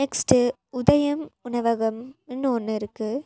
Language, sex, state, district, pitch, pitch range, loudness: Tamil, female, Tamil Nadu, Nilgiris, 250 Hz, 230-270 Hz, -24 LUFS